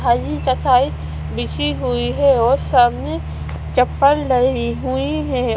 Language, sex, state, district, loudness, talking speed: Hindi, female, Punjab, Kapurthala, -18 LUFS, 110 wpm